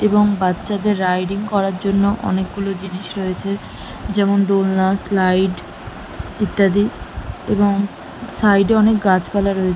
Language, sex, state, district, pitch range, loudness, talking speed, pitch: Bengali, female, West Bengal, Malda, 190-205 Hz, -18 LUFS, 115 wpm, 195 Hz